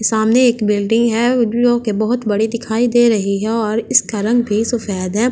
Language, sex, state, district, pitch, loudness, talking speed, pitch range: Hindi, female, Delhi, New Delhi, 225 Hz, -15 LUFS, 205 wpm, 215-240 Hz